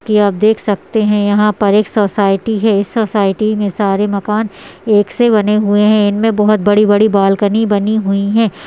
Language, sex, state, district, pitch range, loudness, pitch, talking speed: Hindi, female, Uttarakhand, Tehri Garhwal, 205-215 Hz, -13 LUFS, 210 Hz, 200 wpm